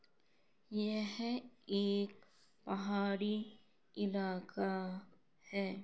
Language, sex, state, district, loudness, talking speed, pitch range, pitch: Hindi, female, Bihar, Kishanganj, -40 LUFS, 60 wpm, 195-215 Hz, 200 Hz